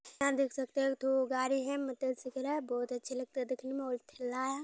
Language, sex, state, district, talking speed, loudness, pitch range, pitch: Hindi, female, Bihar, Araria, 245 wpm, -35 LUFS, 255-275 Hz, 265 Hz